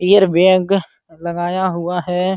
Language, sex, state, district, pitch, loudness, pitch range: Hindi, male, Uttar Pradesh, Jalaun, 180 Hz, -16 LUFS, 175-190 Hz